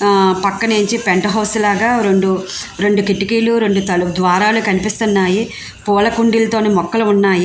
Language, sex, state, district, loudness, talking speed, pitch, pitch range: Telugu, female, Andhra Pradesh, Visakhapatnam, -14 LUFS, 130 wpm, 205 Hz, 190-220 Hz